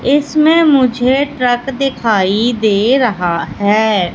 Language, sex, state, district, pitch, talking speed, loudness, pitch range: Hindi, female, Madhya Pradesh, Katni, 245 Hz, 100 wpm, -13 LUFS, 210-275 Hz